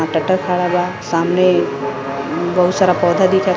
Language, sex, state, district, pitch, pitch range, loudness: Bhojpuri, female, Uttar Pradesh, Gorakhpur, 180 Hz, 160-185 Hz, -16 LUFS